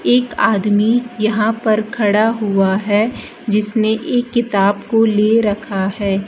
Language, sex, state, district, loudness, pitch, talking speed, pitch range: Hindi, female, Rajasthan, Bikaner, -16 LUFS, 215 Hz, 135 wpm, 205-225 Hz